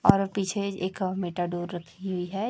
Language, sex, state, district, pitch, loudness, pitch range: Hindi, female, Chhattisgarh, Raipur, 185 Hz, -29 LUFS, 180-195 Hz